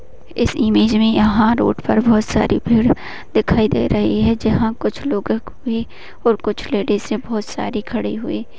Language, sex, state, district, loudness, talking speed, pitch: Hindi, female, Uttar Pradesh, Deoria, -17 LUFS, 190 wpm, 215 Hz